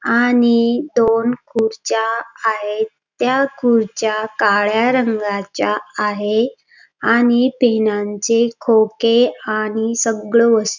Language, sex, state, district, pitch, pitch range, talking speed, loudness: Marathi, female, Maharashtra, Dhule, 225 Hz, 215-235 Hz, 90 wpm, -17 LUFS